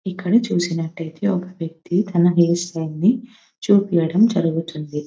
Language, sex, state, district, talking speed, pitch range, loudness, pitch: Telugu, female, Telangana, Nalgonda, 120 wpm, 165-200 Hz, -19 LUFS, 175 Hz